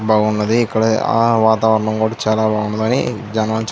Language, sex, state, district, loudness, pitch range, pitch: Telugu, male, Andhra Pradesh, Krishna, -16 LUFS, 110-115 Hz, 110 Hz